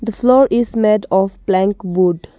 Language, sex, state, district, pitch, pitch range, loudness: English, female, Arunachal Pradesh, Longding, 205 Hz, 190-230 Hz, -15 LUFS